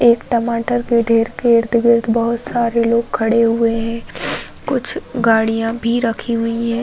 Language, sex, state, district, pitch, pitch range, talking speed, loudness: Hindi, female, Uttar Pradesh, Varanasi, 230 Hz, 230-235 Hz, 160 wpm, -17 LUFS